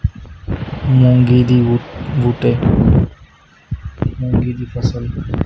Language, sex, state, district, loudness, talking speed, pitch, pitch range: Punjabi, male, Punjab, Kapurthala, -15 LUFS, 55 wpm, 120 Hz, 110-125 Hz